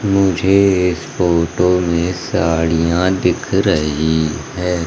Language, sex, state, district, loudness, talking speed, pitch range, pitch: Hindi, male, Madhya Pradesh, Umaria, -16 LUFS, 100 wpm, 85-95 Hz, 90 Hz